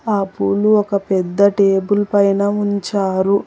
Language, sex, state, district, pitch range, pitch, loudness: Telugu, female, Telangana, Hyderabad, 195-205 Hz, 200 Hz, -16 LUFS